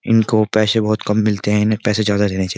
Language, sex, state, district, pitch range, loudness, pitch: Hindi, male, Uttar Pradesh, Jyotiba Phule Nagar, 105-110 Hz, -16 LUFS, 105 Hz